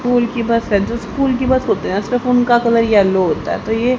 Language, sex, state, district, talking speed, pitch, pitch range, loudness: Hindi, female, Haryana, Jhajjar, 300 wpm, 235 Hz, 220-245 Hz, -16 LUFS